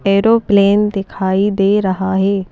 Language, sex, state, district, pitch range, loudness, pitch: Hindi, female, Madhya Pradesh, Bhopal, 190-205 Hz, -14 LUFS, 195 Hz